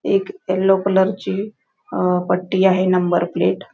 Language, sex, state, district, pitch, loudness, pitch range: Marathi, female, Maharashtra, Nagpur, 190 Hz, -18 LUFS, 180-195 Hz